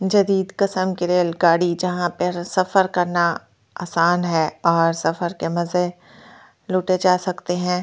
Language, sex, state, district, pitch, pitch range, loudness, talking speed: Hindi, female, Delhi, New Delhi, 180 Hz, 170-185 Hz, -20 LUFS, 125 wpm